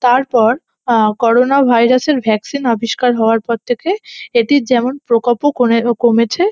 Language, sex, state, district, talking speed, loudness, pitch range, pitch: Bengali, female, West Bengal, North 24 Parganas, 145 wpm, -14 LUFS, 230-265 Hz, 240 Hz